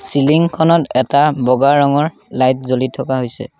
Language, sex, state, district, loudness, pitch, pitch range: Assamese, male, Assam, Sonitpur, -14 LUFS, 140 Hz, 130-150 Hz